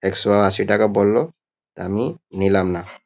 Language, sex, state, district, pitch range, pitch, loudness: Bengali, male, West Bengal, Kolkata, 95-105 Hz, 100 Hz, -19 LUFS